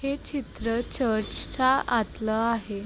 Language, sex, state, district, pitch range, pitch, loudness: Marathi, female, Maharashtra, Sindhudurg, 220-260 Hz, 230 Hz, -25 LUFS